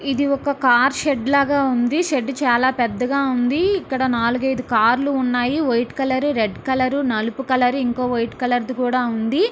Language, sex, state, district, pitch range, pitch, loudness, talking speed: Telugu, female, Andhra Pradesh, Srikakulam, 245-275 Hz, 255 Hz, -19 LUFS, 170 wpm